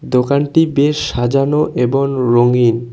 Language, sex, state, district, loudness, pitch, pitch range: Bengali, male, West Bengal, Cooch Behar, -14 LUFS, 135 Hz, 120-145 Hz